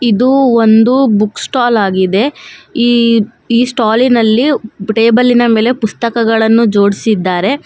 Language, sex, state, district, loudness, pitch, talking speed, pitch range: Kannada, female, Karnataka, Bangalore, -11 LUFS, 230 Hz, 110 wpm, 220-245 Hz